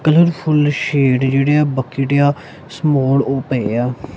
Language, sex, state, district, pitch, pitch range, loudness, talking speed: Punjabi, male, Punjab, Kapurthala, 140 Hz, 135-150 Hz, -16 LUFS, 160 wpm